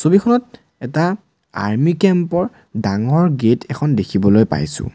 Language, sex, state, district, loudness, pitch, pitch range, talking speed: Assamese, male, Assam, Sonitpur, -17 LUFS, 150 Hz, 110-180 Hz, 120 wpm